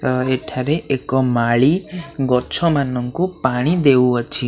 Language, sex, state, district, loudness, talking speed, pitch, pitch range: Odia, male, Odisha, Khordha, -18 LUFS, 95 wpm, 130 Hz, 125-155 Hz